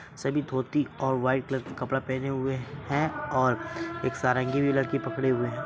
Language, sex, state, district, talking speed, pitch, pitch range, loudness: Hindi, male, Bihar, Saharsa, 190 wpm, 135 Hz, 130-145 Hz, -28 LUFS